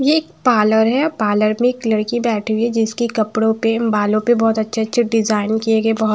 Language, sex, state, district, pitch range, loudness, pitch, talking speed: Hindi, female, Himachal Pradesh, Shimla, 215-235 Hz, -17 LUFS, 225 Hz, 205 wpm